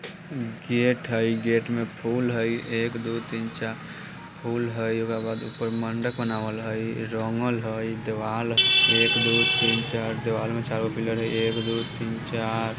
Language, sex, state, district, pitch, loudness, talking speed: Bajjika, male, Bihar, Vaishali, 115 Hz, -25 LUFS, 170 wpm